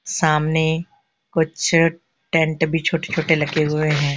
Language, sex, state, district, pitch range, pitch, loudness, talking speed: Hindi, female, Punjab, Kapurthala, 155-165 Hz, 160 Hz, -19 LUFS, 130 wpm